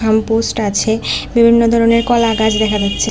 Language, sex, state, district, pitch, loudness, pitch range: Bengali, female, Tripura, West Tripura, 225 Hz, -13 LUFS, 220-230 Hz